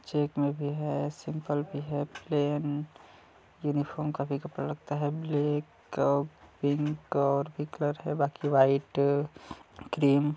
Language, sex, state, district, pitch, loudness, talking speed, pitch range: Hindi, male, Chhattisgarh, Balrampur, 145 Hz, -30 LUFS, 135 wpm, 140-150 Hz